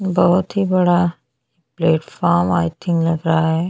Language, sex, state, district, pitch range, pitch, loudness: Hindi, female, Chhattisgarh, Bastar, 165-175 Hz, 170 Hz, -17 LUFS